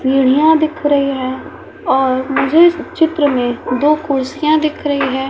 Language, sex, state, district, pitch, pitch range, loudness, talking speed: Hindi, female, Bihar, West Champaran, 285 Hz, 265-310 Hz, -14 LUFS, 160 wpm